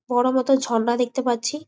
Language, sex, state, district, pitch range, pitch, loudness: Bengali, female, West Bengal, Jalpaiguri, 240-265 Hz, 245 Hz, -21 LUFS